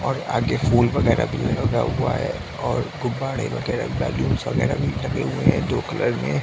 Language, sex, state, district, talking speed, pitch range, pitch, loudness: Hindi, male, Uttar Pradesh, Varanasi, 185 wpm, 105-135 Hz, 120 Hz, -22 LUFS